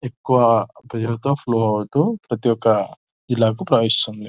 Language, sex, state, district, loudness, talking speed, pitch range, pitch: Telugu, male, Telangana, Nalgonda, -19 LUFS, 100 wpm, 110-125 Hz, 115 Hz